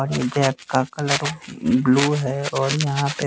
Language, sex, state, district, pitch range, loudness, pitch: Hindi, male, Bihar, West Champaran, 135-145 Hz, -21 LUFS, 140 Hz